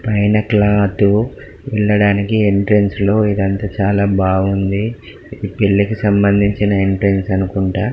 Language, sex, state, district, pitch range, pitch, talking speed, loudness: Telugu, male, Telangana, Karimnagar, 100-105 Hz, 100 Hz, 100 wpm, -15 LUFS